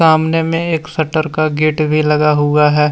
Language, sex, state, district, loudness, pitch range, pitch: Hindi, male, Jharkhand, Deoghar, -14 LUFS, 150-160 Hz, 155 Hz